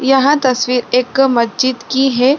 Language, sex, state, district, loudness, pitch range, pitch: Hindi, female, Bihar, Saran, -14 LUFS, 250-270 Hz, 260 Hz